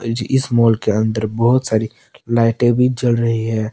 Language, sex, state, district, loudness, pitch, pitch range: Hindi, male, Jharkhand, Palamu, -16 LUFS, 115 Hz, 110-120 Hz